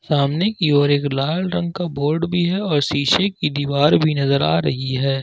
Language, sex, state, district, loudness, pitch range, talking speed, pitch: Hindi, male, Jharkhand, Ranchi, -19 LUFS, 140-175 Hz, 220 wpm, 150 Hz